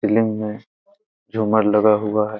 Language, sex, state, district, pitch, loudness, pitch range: Hindi, male, Bihar, Begusarai, 110 Hz, -19 LUFS, 105-110 Hz